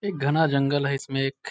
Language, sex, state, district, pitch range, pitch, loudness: Hindi, male, Bihar, Muzaffarpur, 135-155 Hz, 140 Hz, -24 LUFS